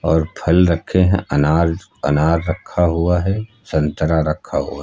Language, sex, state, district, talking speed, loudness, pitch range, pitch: Hindi, male, Uttar Pradesh, Lucknow, 150 wpm, -18 LUFS, 80-95 Hz, 85 Hz